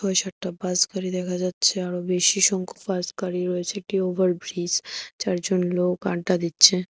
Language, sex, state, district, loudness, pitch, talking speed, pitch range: Bengali, female, Tripura, West Tripura, -23 LUFS, 180 Hz, 165 wpm, 180-190 Hz